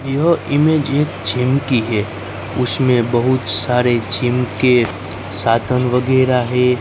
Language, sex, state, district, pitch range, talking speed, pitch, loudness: Hindi, male, Gujarat, Gandhinagar, 115-130 Hz, 125 wpm, 125 Hz, -16 LUFS